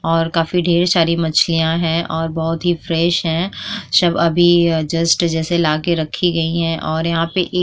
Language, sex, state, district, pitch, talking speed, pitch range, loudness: Hindi, female, Uttar Pradesh, Jyotiba Phule Nagar, 165 Hz, 175 wpm, 165-175 Hz, -16 LUFS